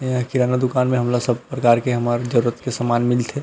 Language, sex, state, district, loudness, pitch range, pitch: Chhattisgarhi, male, Chhattisgarh, Rajnandgaon, -19 LUFS, 120-125 Hz, 125 Hz